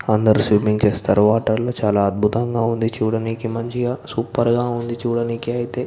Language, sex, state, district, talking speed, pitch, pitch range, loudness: Telugu, male, Andhra Pradesh, Visakhapatnam, 135 wpm, 115 Hz, 110-120 Hz, -19 LUFS